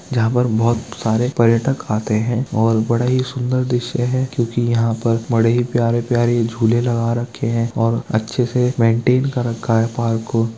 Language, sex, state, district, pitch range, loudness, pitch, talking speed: Hindi, male, Bihar, Kishanganj, 115-125 Hz, -18 LUFS, 120 Hz, 180 wpm